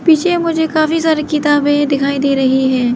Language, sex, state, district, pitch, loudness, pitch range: Hindi, female, Arunachal Pradesh, Lower Dibang Valley, 295 Hz, -14 LUFS, 275-320 Hz